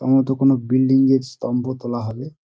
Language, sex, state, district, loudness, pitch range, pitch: Bengali, male, West Bengal, Dakshin Dinajpur, -19 LUFS, 125-135 Hz, 130 Hz